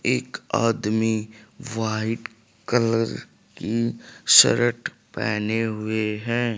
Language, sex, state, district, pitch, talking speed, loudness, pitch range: Hindi, male, Haryana, Rohtak, 110 Hz, 80 wpm, -22 LUFS, 110-115 Hz